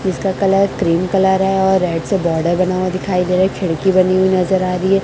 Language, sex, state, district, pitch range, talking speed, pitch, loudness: Hindi, female, Chhattisgarh, Raipur, 180-190 Hz, 275 wpm, 185 Hz, -15 LUFS